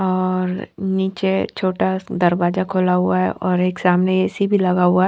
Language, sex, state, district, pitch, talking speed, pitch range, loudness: Hindi, female, Haryana, Charkhi Dadri, 185 Hz, 165 wpm, 180-190 Hz, -19 LUFS